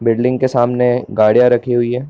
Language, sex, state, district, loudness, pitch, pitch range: Hindi, male, Bihar, Darbhanga, -14 LUFS, 120 Hz, 120-125 Hz